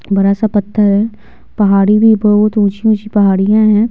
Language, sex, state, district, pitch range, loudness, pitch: Hindi, female, Bihar, Patna, 200-215 Hz, -11 LUFS, 210 Hz